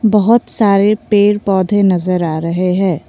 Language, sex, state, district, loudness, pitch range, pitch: Hindi, female, Assam, Kamrup Metropolitan, -13 LUFS, 180-210 Hz, 195 Hz